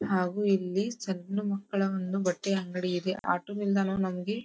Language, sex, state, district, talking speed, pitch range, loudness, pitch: Kannada, female, Karnataka, Dharwad, 160 wpm, 185-200 Hz, -30 LUFS, 195 Hz